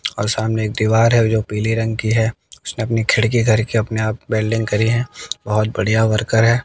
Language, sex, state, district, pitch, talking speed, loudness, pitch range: Hindi, male, Haryana, Jhajjar, 110 Hz, 210 wpm, -18 LUFS, 110-115 Hz